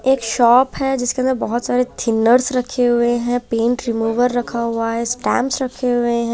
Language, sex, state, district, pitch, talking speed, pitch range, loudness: Hindi, female, Chandigarh, Chandigarh, 245 Hz, 190 wpm, 235-250 Hz, -17 LUFS